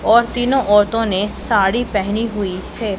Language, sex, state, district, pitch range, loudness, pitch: Hindi, female, Punjab, Pathankot, 200-235 Hz, -17 LUFS, 215 Hz